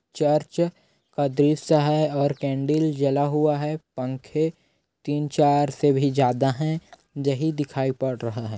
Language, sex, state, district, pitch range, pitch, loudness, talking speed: Hindi, male, Chhattisgarh, Korba, 140-155 Hz, 145 Hz, -23 LUFS, 145 wpm